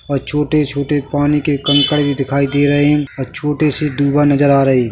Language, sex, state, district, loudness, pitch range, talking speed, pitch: Hindi, male, Chhattisgarh, Bilaspur, -14 LUFS, 140-150 Hz, 220 wpm, 145 Hz